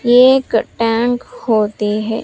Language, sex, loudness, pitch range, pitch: Hindi, female, -15 LUFS, 220-245 Hz, 230 Hz